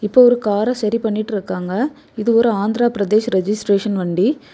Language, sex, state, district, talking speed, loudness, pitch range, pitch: Tamil, female, Tamil Nadu, Kanyakumari, 145 wpm, -17 LUFS, 200-240 Hz, 215 Hz